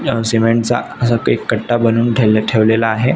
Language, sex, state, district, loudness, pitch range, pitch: Marathi, male, Maharashtra, Nagpur, -14 LUFS, 110-120 Hz, 115 Hz